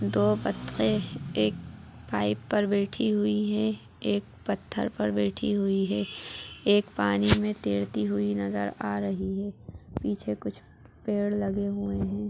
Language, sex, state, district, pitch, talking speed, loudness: Hindi, female, Chhattisgarh, Bilaspur, 105 Hz, 140 wpm, -28 LUFS